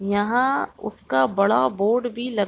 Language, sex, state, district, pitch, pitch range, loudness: Hindi, female, Chhattisgarh, Raigarh, 210 Hz, 200-245 Hz, -22 LUFS